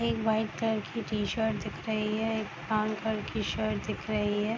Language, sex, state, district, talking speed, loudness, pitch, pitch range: Hindi, female, Bihar, East Champaran, 210 wpm, -31 LUFS, 215 Hz, 205-220 Hz